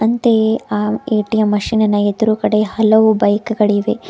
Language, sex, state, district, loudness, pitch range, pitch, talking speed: Kannada, female, Karnataka, Bidar, -15 LUFS, 210-220 Hz, 215 Hz, 115 wpm